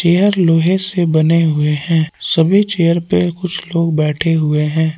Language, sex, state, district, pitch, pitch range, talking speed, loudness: Hindi, male, Jharkhand, Palamu, 165 Hz, 160-175 Hz, 170 wpm, -14 LUFS